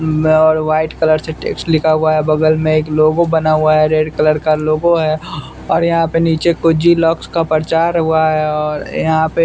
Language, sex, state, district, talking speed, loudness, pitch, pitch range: Hindi, male, Bihar, West Champaran, 230 wpm, -14 LUFS, 155 Hz, 155-165 Hz